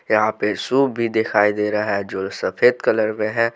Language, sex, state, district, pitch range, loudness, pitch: Hindi, male, Jharkhand, Deoghar, 105-115 Hz, -19 LUFS, 110 Hz